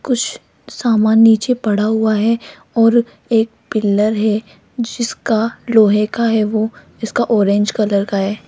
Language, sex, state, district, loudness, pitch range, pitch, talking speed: Hindi, female, Rajasthan, Jaipur, -16 LUFS, 215-230 Hz, 220 Hz, 140 wpm